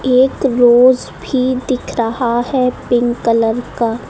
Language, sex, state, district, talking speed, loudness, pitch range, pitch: Hindi, female, Uttar Pradesh, Lucknow, 130 wpm, -14 LUFS, 235-255 Hz, 245 Hz